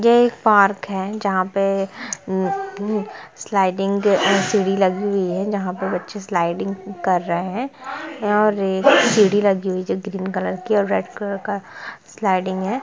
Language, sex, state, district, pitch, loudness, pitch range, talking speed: Hindi, female, Jharkhand, Jamtara, 195 Hz, -20 LUFS, 190-210 Hz, 160 wpm